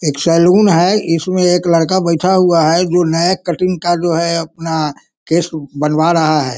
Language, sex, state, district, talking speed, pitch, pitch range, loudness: Hindi, male, Bihar, Sitamarhi, 180 wpm, 170 Hz, 160-180 Hz, -13 LUFS